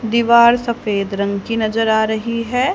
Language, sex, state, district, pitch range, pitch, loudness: Hindi, female, Haryana, Charkhi Dadri, 215-235 Hz, 225 Hz, -16 LUFS